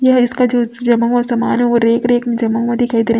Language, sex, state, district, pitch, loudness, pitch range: Hindi, female, Chhattisgarh, Raipur, 240 Hz, -14 LUFS, 235-245 Hz